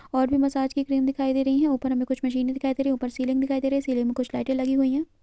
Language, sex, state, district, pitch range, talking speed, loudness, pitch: Hindi, female, Uttarakhand, Uttarkashi, 260-275 Hz, 345 wpm, -25 LUFS, 265 Hz